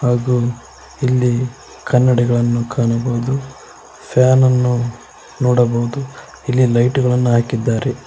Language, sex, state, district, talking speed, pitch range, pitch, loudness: Kannada, male, Karnataka, Koppal, 75 wpm, 120-130 Hz, 125 Hz, -16 LUFS